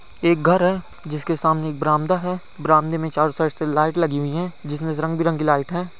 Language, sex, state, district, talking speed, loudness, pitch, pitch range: Hindi, male, Bihar, Begusarai, 250 wpm, -20 LUFS, 160 Hz, 155-170 Hz